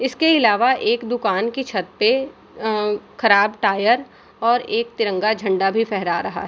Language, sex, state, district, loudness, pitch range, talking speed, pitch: Hindi, female, Bihar, Samastipur, -19 LUFS, 200-250 Hz, 160 wpm, 225 Hz